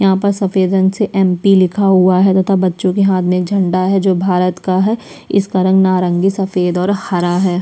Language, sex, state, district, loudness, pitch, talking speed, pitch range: Hindi, female, Chhattisgarh, Sukma, -13 LUFS, 190 Hz, 220 wpm, 185-195 Hz